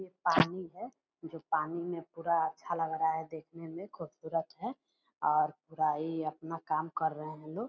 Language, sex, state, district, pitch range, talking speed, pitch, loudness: Hindi, female, Bihar, Purnia, 155-170 Hz, 185 wpm, 165 Hz, -34 LUFS